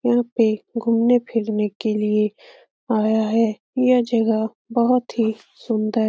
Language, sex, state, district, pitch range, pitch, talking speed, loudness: Hindi, female, Bihar, Lakhisarai, 215-240 Hz, 225 Hz, 130 wpm, -20 LUFS